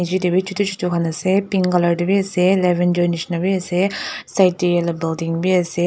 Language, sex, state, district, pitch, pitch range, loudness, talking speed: Nagamese, female, Nagaland, Dimapur, 180 Hz, 175-190 Hz, -19 LUFS, 120 wpm